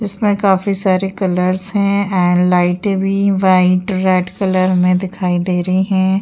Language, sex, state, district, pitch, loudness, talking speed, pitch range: Hindi, female, Uttar Pradesh, Jyotiba Phule Nagar, 190 Hz, -15 LUFS, 155 wpm, 180-195 Hz